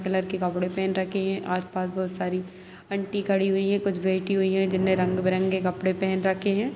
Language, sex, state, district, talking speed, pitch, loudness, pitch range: Hindi, female, Bihar, Sitamarhi, 215 wpm, 190 Hz, -26 LUFS, 185-195 Hz